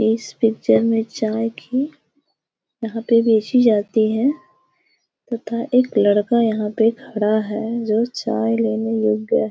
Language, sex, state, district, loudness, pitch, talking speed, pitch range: Hindi, female, Bihar, East Champaran, -19 LUFS, 225 Hz, 145 wpm, 215-240 Hz